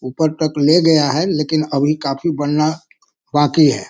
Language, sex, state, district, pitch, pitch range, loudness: Hindi, male, Bihar, Sitamarhi, 150 Hz, 145-160 Hz, -16 LUFS